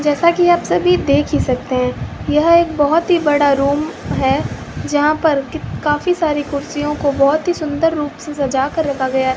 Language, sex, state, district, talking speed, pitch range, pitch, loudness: Hindi, female, Rajasthan, Bikaner, 200 wpm, 280-320 Hz, 295 Hz, -16 LUFS